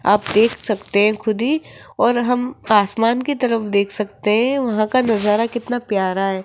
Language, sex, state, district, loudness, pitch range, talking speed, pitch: Hindi, female, Rajasthan, Jaipur, -18 LUFS, 205-240 Hz, 185 wpm, 220 Hz